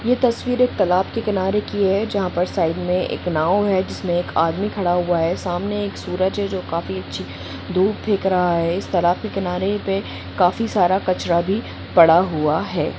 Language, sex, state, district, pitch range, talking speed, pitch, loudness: Hindi, female, Jharkhand, Jamtara, 175-200 Hz, 200 wpm, 185 Hz, -20 LUFS